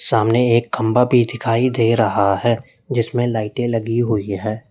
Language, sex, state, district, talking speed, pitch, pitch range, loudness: Hindi, male, Uttar Pradesh, Lalitpur, 165 wpm, 115 Hz, 110-120 Hz, -18 LUFS